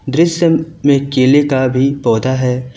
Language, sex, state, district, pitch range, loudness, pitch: Hindi, male, Uttar Pradesh, Lucknow, 130-145 Hz, -13 LUFS, 135 Hz